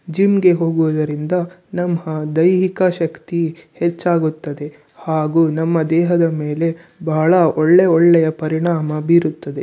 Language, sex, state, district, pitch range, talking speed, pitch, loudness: Kannada, male, Karnataka, Shimoga, 155-175 Hz, 95 wpm, 165 Hz, -16 LUFS